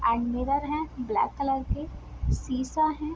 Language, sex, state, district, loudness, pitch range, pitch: Hindi, female, Bihar, Sitamarhi, -29 LUFS, 255-310 Hz, 275 Hz